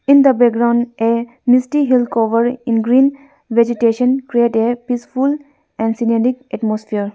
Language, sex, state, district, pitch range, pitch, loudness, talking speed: English, female, Arunachal Pradesh, Lower Dibang Valley, 230-260 Hz, 240 Hz, -15 LUFS, 135 wpm